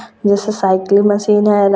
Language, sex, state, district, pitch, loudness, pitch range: Hindi, female, Rajasthan, Churu, 205 Hz, -13 LUFS, 200-210 Hz